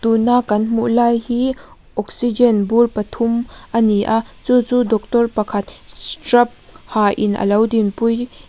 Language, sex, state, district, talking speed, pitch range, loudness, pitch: Mizo, female, Mizoram, Aizawl, 135 wpm, 215-240 Hz, -17 LUFS, 230 Hz